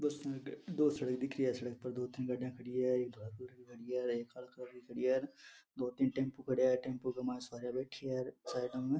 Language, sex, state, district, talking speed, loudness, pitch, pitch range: Marwari, male, Rajasthan, Nagaur, 240 wpm, -38 LUFS, 125 Hz, 125-130 Hz